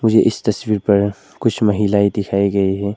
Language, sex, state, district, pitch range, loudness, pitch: Hindi, male, Arunachal Pradesh, Lower Dibang Valley, 100-105 Hz, -17 LUFS, 100 Hz